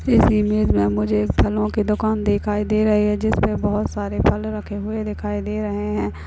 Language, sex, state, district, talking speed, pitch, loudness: Hindi, female, Uttar Pradesh, Muzaffarnagar, 210 wpm, 205 Hz, -20 LUFS